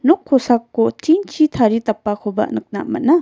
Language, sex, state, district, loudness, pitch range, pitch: Garo, female, Meghalaya, West Garo Hills, -17 LUFS, 220-310 Hz, 245 Hz